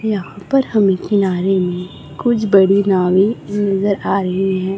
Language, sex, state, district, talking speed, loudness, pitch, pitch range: Hindi, female, Chhattisgarh, Raipur, 150 wpm, -16 LUFS, 195 Hz, 190-205 Hz